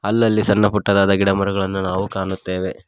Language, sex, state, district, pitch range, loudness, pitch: Kannada, male, Karnataka, Koppal, 95-105 Hz, -18 LUFS, 100 Hz